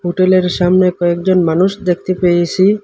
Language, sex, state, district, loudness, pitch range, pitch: Bengali, male, Assam, Hailakandi, -13 LUFS, 175-185 Hz, 180 Hz